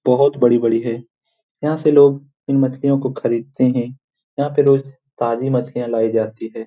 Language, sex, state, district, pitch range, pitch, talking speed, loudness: Hindi, male, Bihar, Jamui, 120-140 Hz, 130 Hz, 170 wpm, -17 LUFS